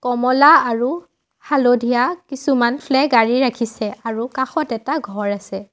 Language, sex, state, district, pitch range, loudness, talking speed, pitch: Assamese, female, Assam, Sonitpur, 230-280 Hz, -17 LUFS, 125 wpm, 250 Hz